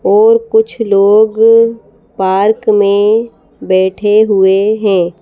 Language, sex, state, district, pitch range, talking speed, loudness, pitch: Hindi, female, Madhya Pradesh, Bhopal, 200-220 Hz, 90 wpm, -10 LUFS, 210 Hz